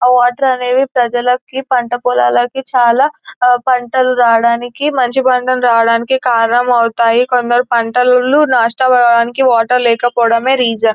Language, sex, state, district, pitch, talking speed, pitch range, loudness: Telugu, female, Telangana, Nalgonda, 245 Hz, 115 wpm, 235-255 Hz, -12 LUFS